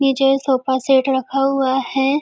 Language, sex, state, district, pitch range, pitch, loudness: Hindi, female, Maharashtra, Nagpur, 265-270 Hz, 270 Hz, -17 LUFS